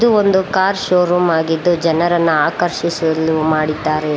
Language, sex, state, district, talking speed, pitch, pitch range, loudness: Kannada, female, Karnataka, Bangalore, 115 wpm, 170 Hz, 160-180 Hz, -15 LUFS